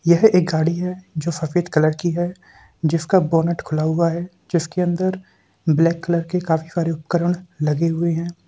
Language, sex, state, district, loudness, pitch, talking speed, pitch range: Hindi, male, Bihar, Gopalganj, -20 LUFS, 170 Hz, 175 wpm, 160-175 Hz